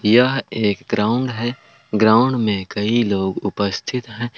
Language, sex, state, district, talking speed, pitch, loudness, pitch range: Hindi, male, Jharkhand, Palamu, 135 wpm, 110 Hz, -19 LUFS, 105-120 Hz